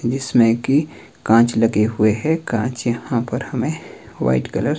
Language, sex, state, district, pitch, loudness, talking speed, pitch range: Hindi, male, Himachal Pradesh, Shimla, 120 Hz, -19 LUFS, 165 wpm, 115-130 Hz